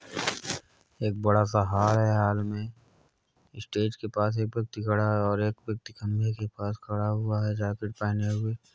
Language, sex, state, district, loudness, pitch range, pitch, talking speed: Hindi, male, Uttar Pradesh, Hamirpur, -29 LUFS, 105-110 Hz, 105 Hz, 180 wpm